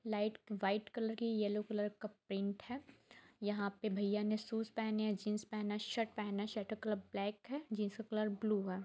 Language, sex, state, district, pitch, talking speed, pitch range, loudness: Hindi, female, Jharkhand, Jamtara, 210 Hz, 210 wpm, 205-220 Hz, -40 LUFS